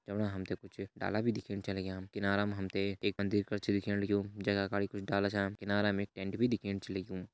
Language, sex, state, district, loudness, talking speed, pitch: Hindi, male, Uttarakhand, Uttarkashi, -35 LUFS, 235 wpm, 100 Hz